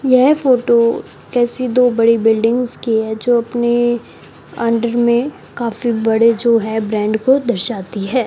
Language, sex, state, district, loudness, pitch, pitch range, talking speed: Hindi, male, Rajasthan, Bikaner, -15 LUFS, 235 Hz, 225-245 Hz, 145 wpm